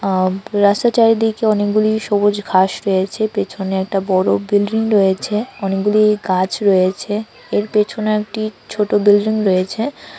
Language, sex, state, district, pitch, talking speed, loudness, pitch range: Bengali, female, Tripura, West Tripura, 205 Hz, 120 wpm, -16 LUFS, 190-215 Hz